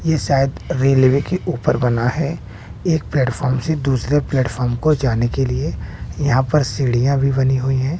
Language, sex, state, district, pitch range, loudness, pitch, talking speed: Hindi, male, Bihar, West Champaran, 125-145 Hz, -18 LUFS, 135 Hz, 170 wpm